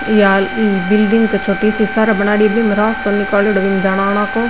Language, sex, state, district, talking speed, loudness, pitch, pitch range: Marwari, female, Rajasthan, Nagaur, 185 wpm, -14 LUFS, 205 Hz, 195-220 Hz